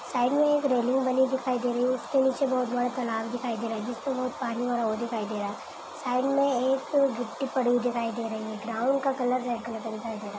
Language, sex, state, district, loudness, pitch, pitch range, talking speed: Hindi, female, Chhattisgarh, Kabirdham, -28 LUFS, 245 Hz, 230-265 Hz, 265 wpm